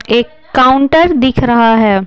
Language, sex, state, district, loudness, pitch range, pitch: Hindi, female, Bihar, Patna, -10 LUFS, 230-300 Hz, 255 Hz